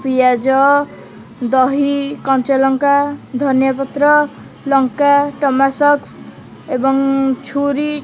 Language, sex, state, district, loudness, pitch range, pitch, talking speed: Odia, female, Odisha, Khordha, -15 LUFS, 265-285 Hz, 275 Hz, 80 wpm